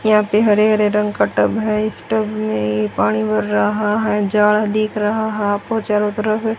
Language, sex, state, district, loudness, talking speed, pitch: Hindi, female, Haryana, Charkhi Dadri, -17 LUFS, 210 wpm, 210 Hz